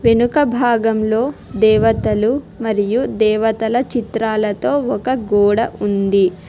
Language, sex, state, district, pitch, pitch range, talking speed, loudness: Telugu, female, Telangana, Hyderabad, 225 Hz, 210-240 Hz, 85 wpm, -16 LUFS